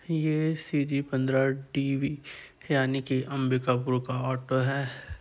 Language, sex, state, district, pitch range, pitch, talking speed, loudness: Chhattisgarhi, male, Chhattisgarh, Sarguja, 130-140 Hz, 135 Hz, 140 wpm, -28 LUFS